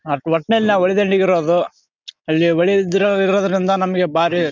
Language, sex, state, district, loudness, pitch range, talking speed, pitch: Kannada, male, Karnataka, Raichur, -16 LUFS, 170-195 Hz, 130 wpm, 185 Hz